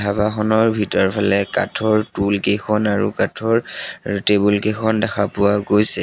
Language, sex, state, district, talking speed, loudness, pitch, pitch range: Assamese, male, Assam, Sonitpur, 110 wpm, -18 LUFS, 105 Hz, 100-110 Hz